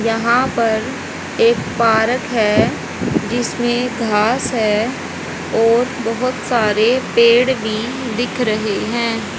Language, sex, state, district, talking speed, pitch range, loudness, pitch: Hindi, female, Haryana, Rohtak, 100 wpm, 220-245 Hz, -17 LUFS, 235 Hz